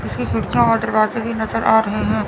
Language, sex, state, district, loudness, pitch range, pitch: Hindi, female, Chandigarh, Chandigarh, -18 LUFS, 145-225 Hz, 220 Hz